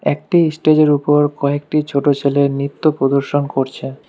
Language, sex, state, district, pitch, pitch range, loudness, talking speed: Bengali, male, West Bengal, Alipurduar, 145 Hz, 140-150 Hz, -16 LUFS, 145 wpm